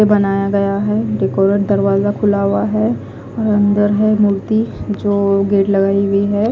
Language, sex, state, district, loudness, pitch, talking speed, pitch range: Hindi, female, Odisha, Khordha, -15 LUFS, 200 Hz, 165 wpm, 195-205 Hz